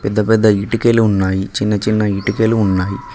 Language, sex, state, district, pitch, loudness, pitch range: Telugu, male, Telangana, Mahabubabad, 105 Hz, -15 LUFS, 95-110 Hz